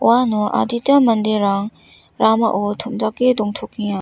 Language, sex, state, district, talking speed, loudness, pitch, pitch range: Garo, female, Meghalaya, West Garo Hills, 90 wpm, -17 LUFS, 215 Hz, 210-235 Hz